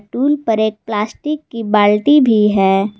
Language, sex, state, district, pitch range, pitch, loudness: Hindi, female, Jharkhand, Garhwa, 210-265 Hz, 220 Hz, -15 LUFS